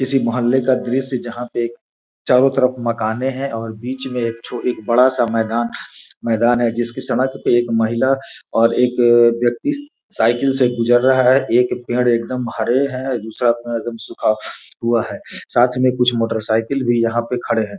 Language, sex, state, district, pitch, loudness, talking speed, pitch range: Hindi, male, Bihar, Gopalganj, 120 Hz, -18 LUFS, 195 wpm, 115-130 Hz